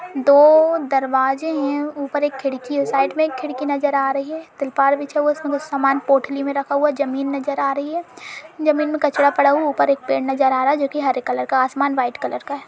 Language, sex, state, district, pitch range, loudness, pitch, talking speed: Hindi, female, Uttar Pradesh, Budaun, 275-295 Hz, -19 LUFS, 280 Hz, 255 wpm